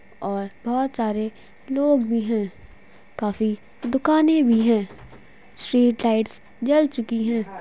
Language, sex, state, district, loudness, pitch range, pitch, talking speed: Hindi, female, Bihar, Jahanabad, -22 LUFS, 220-265 Hz, 230 Hz, 125 wpm